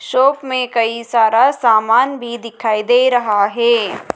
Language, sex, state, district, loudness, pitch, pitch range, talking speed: Hindi, female, Madhya Pradesh, Dhar, -14 LUFS, 235 Hz, 225-250 Hz, 145 wpm